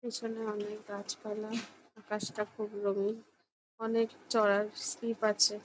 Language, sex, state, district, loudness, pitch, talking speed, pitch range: Bengali, female, West Bengal, Jhargram, -34 LUFS, 215 Hz, 115 wpm, 210-225 Hz